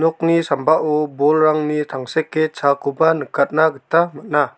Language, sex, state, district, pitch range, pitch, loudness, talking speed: Garo, male, Meghalaya, South Garo Hills, 140-160 Hz, 155 Hz, -18 LUFS, 105 wpm